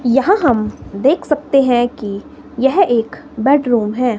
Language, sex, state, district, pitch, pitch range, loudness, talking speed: Hindi, female, Himachal Pradesh, Shimla, 255 Hz, 235-285 Hz, -15 LUFS, 145 wpm